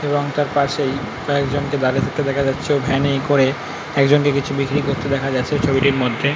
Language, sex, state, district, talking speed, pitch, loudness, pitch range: Bengali, male, West Bengal, North 24 Parganas, 200 wpm, 140 Hz, -19 LUFS, 135-145 Hz